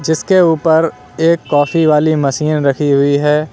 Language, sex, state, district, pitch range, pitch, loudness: Hindi, male, Uttar Pradesh, Lalitpur, 145-160 Hz, 155 Hz, -13 LUFS